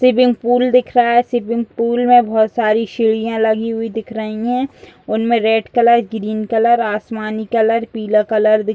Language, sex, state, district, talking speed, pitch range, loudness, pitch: Hindi, female, Bihar, Purnia, 185 wpm, 220-235 Hz, -16 LUFS, 225 Hz